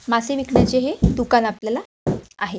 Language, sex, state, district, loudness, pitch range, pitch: Marathi, female, Maharashtra, Aurangabad, -20 LUFS, 225-260 Hz, 245 Hz